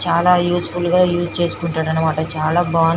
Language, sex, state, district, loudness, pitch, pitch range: Telugu, female, Telangana, Nalgonda, -17 LUFS, 170 Hz, 160-175 Hz